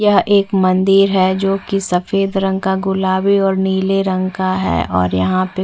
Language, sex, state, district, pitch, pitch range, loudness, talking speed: Hindi, female, Chhattisgarh, Bastar, 190 Hz, 185-195 Hz, -15 LUFS, 200 wpm